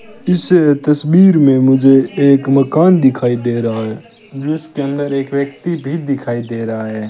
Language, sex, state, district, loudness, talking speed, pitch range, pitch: Hindi, male, Rajasthan, Bikaner, -13 LUFS, 160 wpm, 125-155 Hz, 140 Hz